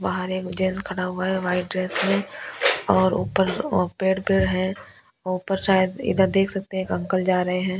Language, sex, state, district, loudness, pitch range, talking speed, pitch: Hindi, female, Delhi, New Delhi, -23 LUFS, 185-190 Hz, 200 wpm, 185 Hz